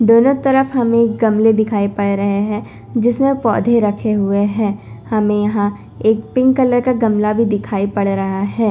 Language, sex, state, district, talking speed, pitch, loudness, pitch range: Hindi, female, Chandigarh, Chandigarh, 170 wpm, 215 Hz, -15 LUFS, 205-235 Hz